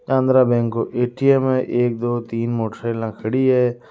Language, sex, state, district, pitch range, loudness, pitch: Marwari, male, Rajasthan, Nagaur, 115-130 Hz, -19 LUFS, 120 Hz